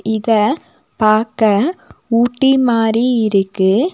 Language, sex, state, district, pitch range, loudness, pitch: Tamil, female, Tamil Nadu, Nilgiris, 215-245 Hz, -15 LUFS, 225 Hz